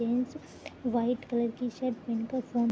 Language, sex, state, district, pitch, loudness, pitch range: Hindi, female, Uttar Pradesh, Jalaun, 240 Hz, -32 LUFS, 235-250 Hz